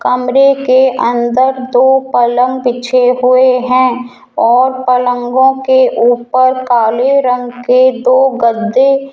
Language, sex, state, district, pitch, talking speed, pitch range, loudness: Hindi, female, Rajasthan, Jaipur, 255 Hz, 120 wpm, 245-260 Hz, -10 LUFS